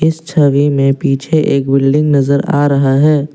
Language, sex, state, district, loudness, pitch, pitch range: Hindi, male, Assam, Kamrup Metropolitan, -12 LUFS, 140 Hz, 140-150 Hz